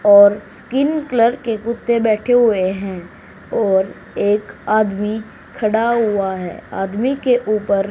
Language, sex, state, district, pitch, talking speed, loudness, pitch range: Hindi, female, Haryana, Charkhi Dadri, 215 Hz, 130 wpm, -17 LUFS, 200-235 Hz